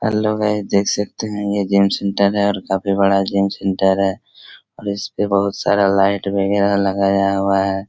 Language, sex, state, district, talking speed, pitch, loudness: Hindi, male, Chhattisgarh, Raigarh, 185 wpm, 100 Hz, -17 LUFS